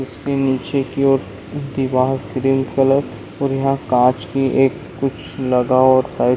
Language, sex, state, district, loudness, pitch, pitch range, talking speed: Hindi, male, Chhattisgarh, Balrampur, -18 LUFS, 135 Hz, 130-135 Hz, 160 wpm